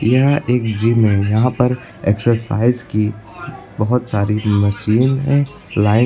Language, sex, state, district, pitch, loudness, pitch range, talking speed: Hindi, male, Uttar Pradesh, Lucknow, 115 Hz, -16 LUFS, 105-125 Hz, 140 wpm